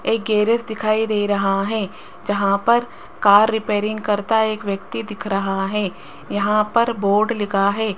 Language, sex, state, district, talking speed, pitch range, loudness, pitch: Hindi, female, Rajasthan, Jaipur, 160 wpm, 200-220 Hz, -19 LUFS, 210 Hz